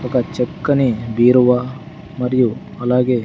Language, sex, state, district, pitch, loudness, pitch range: Telugu, male, Andhra Pradesh, Sri Satya Sai, 125 Hz, -17 LUFS, 125-130 Hz